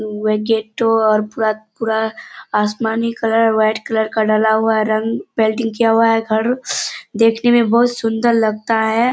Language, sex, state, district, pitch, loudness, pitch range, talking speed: Hindi, female, Bihar, Kishanganj, 225 Hz, -16 LUFS, 220-230 Hz, 160 wpm